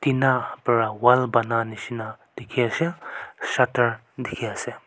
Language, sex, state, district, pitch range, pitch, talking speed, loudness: Nagamese, male, Nagaland, Kohima, 115-125 Hz, 120 Hz, 125 wpm, -23 LUFS